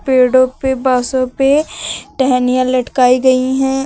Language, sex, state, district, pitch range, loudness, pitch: Hindi, female, Uttar Pradesh, Lucknow, 255-265 Hz, -13 LUFS, 260 Hz